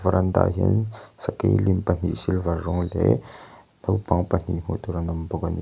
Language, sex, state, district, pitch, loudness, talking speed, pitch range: Mizo, male, Mizoram, Aizawl, 95 Hz, -24 LUFS, 180 wpm, 85-100 Hz